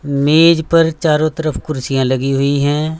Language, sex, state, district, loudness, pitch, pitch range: Hindi, male, Haryana, Rohtak, -14 LUFS, 150 Hz, 140-160 Hz